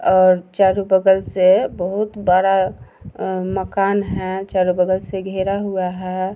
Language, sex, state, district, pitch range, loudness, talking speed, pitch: Hindi, female, Bihar, Vaishali, 185-195 Hz, -18 LUFS, 140 wpm, 190 Hz